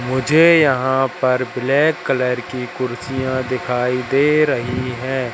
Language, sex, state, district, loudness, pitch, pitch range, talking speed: Hindi, male, Madhya Pradesh, Katni, -17 LUFS, 130 Hz, 125-135 Hz, 125 wpm